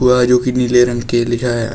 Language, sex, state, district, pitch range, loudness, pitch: Hindi, male, Uttar Pradesh, Shamli, 120-125 Hz, -14 LUFS, 125 Hz